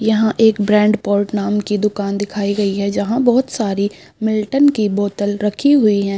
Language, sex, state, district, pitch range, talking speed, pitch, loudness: Hindi, female, Uttar Pradesh, Budaun, 200-220 Hz, 185 wpm, 210 Hz, -16 LUFS